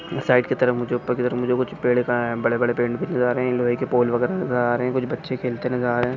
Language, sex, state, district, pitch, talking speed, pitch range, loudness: Hindi, male, Maharashtra, Pune, 125 Hz, 290 wpm, 120-125 Hz, -22 LUFS